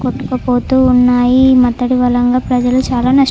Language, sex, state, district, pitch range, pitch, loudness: Telugu, female, Andhra Pradesh, Chittoor, 245-255 Hz, 250 Hz, -12 LUFS